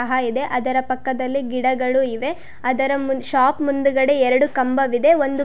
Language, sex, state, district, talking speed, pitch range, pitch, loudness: Kannada, female, Karnataka, Gulbarga, 145 wpm, 255-275 Hz, 265 Hz, -19 LUFS